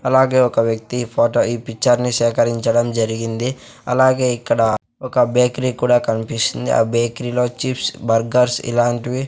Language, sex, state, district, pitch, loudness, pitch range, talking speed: Telugu, male, Andhra Pradesh, Sri Satya Sai, 120 Hz, -18 LUFS, 115-125 Hz, 150 wpm